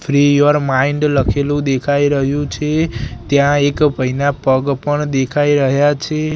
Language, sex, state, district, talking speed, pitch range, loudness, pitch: Gujarati, male, Gujarat, Gandhinagar, 140 wpm, 135-145 Hz, -15 LUFS, 145 Hz